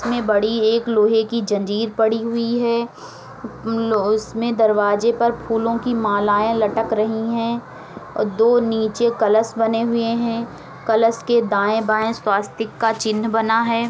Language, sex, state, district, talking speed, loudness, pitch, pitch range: Hindi, female, Uttar Pradesh, Etah, 140 wpm, -19 LUFS, 225 Hz, 215-230 Hz